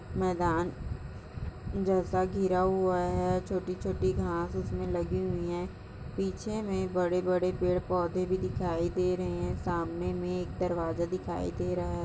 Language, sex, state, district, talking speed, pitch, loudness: Hindi, female, Chhattisgarh, Balrampur, 150 wpm, 175 Hz, -31 LUFS